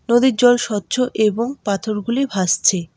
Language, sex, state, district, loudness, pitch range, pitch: Bengali, female, West Bengal, Alipurduar, -18 LUFS, 205-250 Hz, 230 Hz